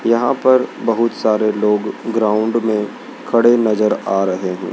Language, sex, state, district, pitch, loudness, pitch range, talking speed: Hindi, male, Madhya Pradesh, Dhar, 110 Hz, -16 LUFS, 105-115 Hz, 150 wpm